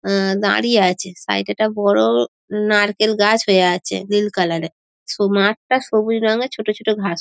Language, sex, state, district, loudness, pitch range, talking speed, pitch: Bengali, female, West Bengal, Dakshin Dinajpur, -17 LUFS, 185-215 Hz, 185 wpm, 205 Hz